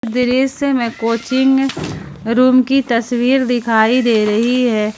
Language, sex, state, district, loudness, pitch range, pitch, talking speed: Hindi, female, Jharkhand, Ranchi, -15 LUFS, 225-260 Hz, 245 Hz, 120 wpm